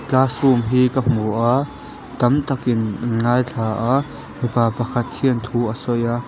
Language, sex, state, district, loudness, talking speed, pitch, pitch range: Mizo, male, Mizoram, Aizawl, -19 LUFS, 155 wpm, 120 Hz, 120-130 Hz